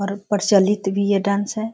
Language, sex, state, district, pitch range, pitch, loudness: Hindi, female, Bihar, Sitamarhi, 200-205 Hz, 200 Hz, -19 LUFS